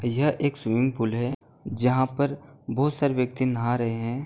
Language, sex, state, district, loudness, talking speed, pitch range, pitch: Hindi, male, Uttar Pradesh, Gorakhpur, -26 LUFS, 185 wpm, 120-140 Hz, 125 Hz